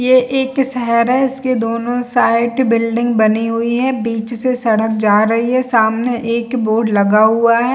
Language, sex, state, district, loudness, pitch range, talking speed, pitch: Hindi, female, Chhattisgarh, Bilaspur, -15 LUFS, 225-250 Hz, 180 wpm, 235 Hz